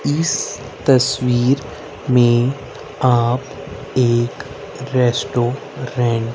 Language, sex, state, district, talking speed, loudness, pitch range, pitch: Hindi, male, Haryana, Rohtak, 65 wpm, -18 LUFS, 120-140 Hz, 125 Hz